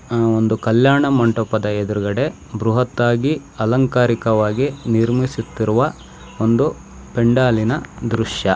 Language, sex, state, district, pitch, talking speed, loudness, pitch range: Kannada, male, Karnataka, Shimoga, 115 Hz, 75 wpm, -18 LUFS, 110-125 Hz